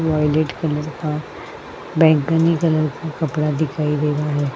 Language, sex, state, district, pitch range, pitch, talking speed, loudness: Hindi, female, Uttar Pradesh, Jyotiba Phule Nagar, 150-160 Hz, 155 Hz, 145 wpm, -19 LUFS